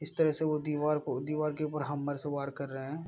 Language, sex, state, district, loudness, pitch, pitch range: Hindi, male, Bihar, Araria, -33 LUFS, 150 Hz, 145-155 Hz